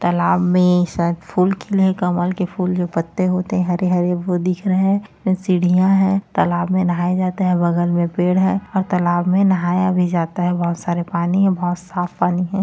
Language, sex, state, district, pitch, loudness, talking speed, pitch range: Hindi, male, Chhattisgarh, Bilaspur, 180 Hz, -18 LUFS, 215 wpm, 175-185 Hz